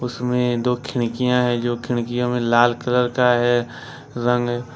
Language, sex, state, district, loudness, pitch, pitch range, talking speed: Hindi, male, Jharkhand, Ranchi, -20 LUFS, 120 Hz, 120-125 Hz, 150 wpm